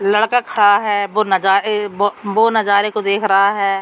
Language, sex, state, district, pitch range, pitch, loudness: Hindi, female, Jharkhand, Sahebganj, 200-215 Hz, 205 Hz, -15 LUFS